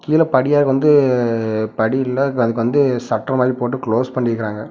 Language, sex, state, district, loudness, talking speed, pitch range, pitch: Tamil, male, Tamil Nadu, Namakkal, -17 LUFS, 140 wpm, 115-135 Hz, 125 Hz